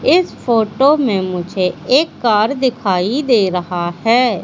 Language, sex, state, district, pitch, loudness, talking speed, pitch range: Hindi, female, Madhya Pradesh, Katni, 215 Hz, -15 LUFS, 135 wpm, 185-260 Hz